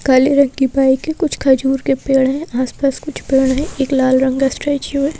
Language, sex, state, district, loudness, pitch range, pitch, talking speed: Hindi, female, Madhya Pradesh, Bhopal, -15 LUFS, 265-280 Hz, 270 Hz, 220 wpm